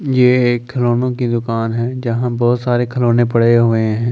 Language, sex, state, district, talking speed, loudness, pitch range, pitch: Hindi, male, Delhi, New Delhi, 220 wpm, -15 LUFS, 115-125 Hz, 120 Hz